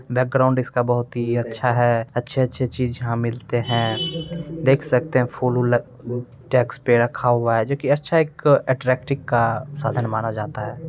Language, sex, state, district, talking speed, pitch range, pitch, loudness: Hindi, male, Bihar, Begusarai, 165 wpm, 120-130 Hz, 125 Hz, -21 LUFS